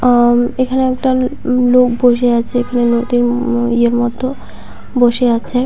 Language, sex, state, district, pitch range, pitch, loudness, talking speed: Bengali, female, West Bengal, Paschim Medinipur, 240-255 Hz, 245 Hz, -14 LUFS, 125 wpm